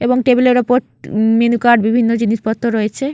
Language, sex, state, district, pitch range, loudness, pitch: Bengali, female, West Bengal, Jalpaiguri, 225-250 Hz, -14 LUFS, 235 Hz